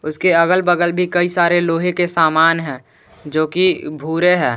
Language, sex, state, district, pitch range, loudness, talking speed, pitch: Hindi, male, Jharkhand, Garhwa, 155-175 Hz, -15 LUFS, 185 wpm, 170 Hz